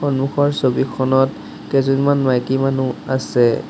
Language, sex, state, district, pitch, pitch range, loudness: Assamese, male, Assam, Sonitpur, 135 Hz, 130-140 Hz, -18 LUFS